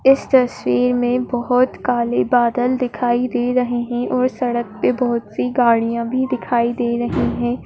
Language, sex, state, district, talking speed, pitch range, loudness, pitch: Hindi, female, Uttar Pradesh, Etah, 165 wpm, 240-250 Hz, -18 LUFS, 245 Hz